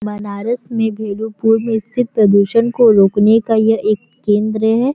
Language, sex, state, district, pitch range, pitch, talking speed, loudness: Hindi, female, Uttar Pradesh, Varanasi, 210-230 Hz, 220 Hz, 145 wpm, -14 LUFS